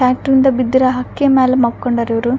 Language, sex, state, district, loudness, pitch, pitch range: Kannada, female, Karnataka, Raichur, -14 LUFS, 255 Hz, 245-260 Hz